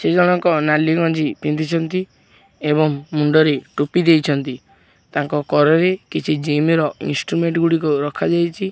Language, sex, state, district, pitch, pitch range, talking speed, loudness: Odia, male, Odisha, Khordha, 155 Hz, 150-170 Hz, 115 wpm, -18 LUFS